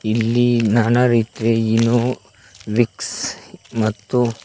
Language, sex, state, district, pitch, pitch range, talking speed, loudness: Kannada, male, Karnataka, Koppal, 115 Hz, 110-120 Hz, 65 wpm, -18 LUFS